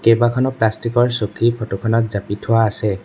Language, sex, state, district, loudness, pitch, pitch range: Assamese, male, Assam, Sonitpur, -18 LUFS, 115 Hz, 105-115 Hz